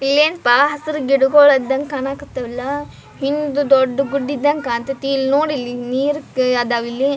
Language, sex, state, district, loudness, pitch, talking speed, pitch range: Kannada, female, Karnataka, Dharwad, -17 LUFS, 275 Hz, 125 wpm, 260-290 Hz